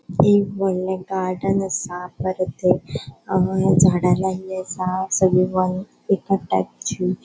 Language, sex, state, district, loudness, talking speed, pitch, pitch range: Konkani, female, Goa, North and South Goa, -21 LUFS, 90 wpm, 185 Hz, 185-190 Hz